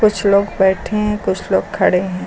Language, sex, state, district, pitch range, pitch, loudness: Hindi, female, Uttar Pradesh, Lucknow, 190-210 Hz, 200 Hz, -16 LUFS